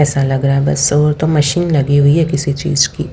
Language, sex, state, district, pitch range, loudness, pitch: Hindi, female, Haryana, Rohtak, 140-155 Hz, -13 LUFS, 145 Hz